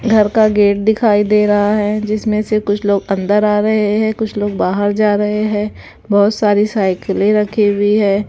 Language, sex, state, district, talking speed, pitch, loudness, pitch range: Hindi, female, Bihar, West Champaran, 195 wpm, 210 Hz, -14 LUFS, 205-215 Hz